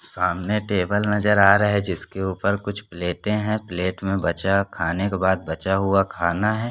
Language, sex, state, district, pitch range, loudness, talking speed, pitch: Hindi, male, Chhattisgarh, Korba, 90-105 Hz, -22 LUFS, 190 wpm, 95 Hz